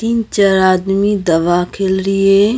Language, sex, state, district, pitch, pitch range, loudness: Hindi, female, Maharashtra, Gondia, 195 Hz, 185-205 Hz, -13 LUFS